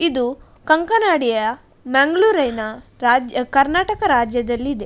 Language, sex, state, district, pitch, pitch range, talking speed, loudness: Kannada, female, Karnataka, Dakshina Kannada, 270 Hz, 240-335 Hz, 85 wpm, -18 LUFS